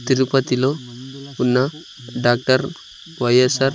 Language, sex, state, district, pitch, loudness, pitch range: Telugu, male, Andhra Pradesh, Sri Satya Sai, 130 Hz, -18 LUFS, 125-135 Hz